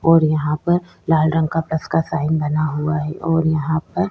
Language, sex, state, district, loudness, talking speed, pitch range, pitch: Hindi, female, Chhattisgarh, Kabirdham, -19 LUFS, 220 wpm, 155-165 Hz, 160 Hz